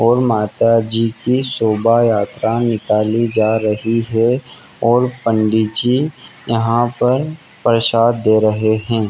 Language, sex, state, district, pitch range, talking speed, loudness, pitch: Hindi, male, Bihar, Jamui, 110-120 Hz, 125 wpm, -15 LUFS, 115 Hz